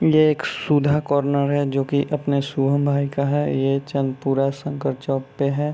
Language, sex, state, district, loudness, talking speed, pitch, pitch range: Hindi, male, Bihar, Begusarai, -21 LUFS, 190 wpm, 140 Hz, 135-145 Hz